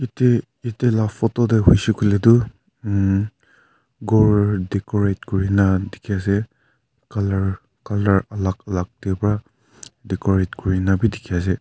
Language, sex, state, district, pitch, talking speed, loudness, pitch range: Nagamese, male, Nagaland, Kohima, 105 Hz, 135 wpm, -20 LUFS, 95-115 Hz